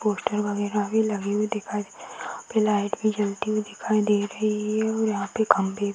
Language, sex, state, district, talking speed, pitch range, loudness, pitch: Hindi, female, Bihar, Jahanabad, 220 wpm, 205-215 Hz, -25 LUFS, 210 Hz